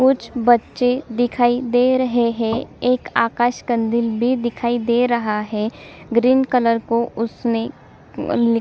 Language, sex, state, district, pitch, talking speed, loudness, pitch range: Hindi, female, Chhattisgarh, Sukma, 240 Hz, 130 wpm, -19 LUFS, 230-245 Hz